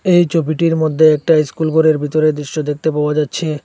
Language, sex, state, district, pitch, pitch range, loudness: Bengali, male, Assam, Hailakandi, 155 Hz, 150-160 Hz, -15 LUFS